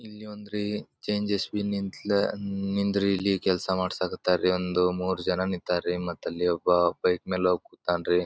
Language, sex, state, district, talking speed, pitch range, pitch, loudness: Kannada, male, Karnataka, Bijapur, 140 wpm, 90-100 Hz, 95 Hz, -27 LUFS